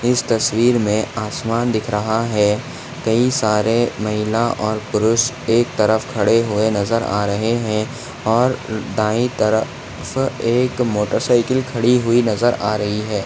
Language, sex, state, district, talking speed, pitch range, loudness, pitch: Hindi, male, Maharashtra, Nagpur, 140 wpm, 105-120 Hz, -18 LUFS, 110 Hz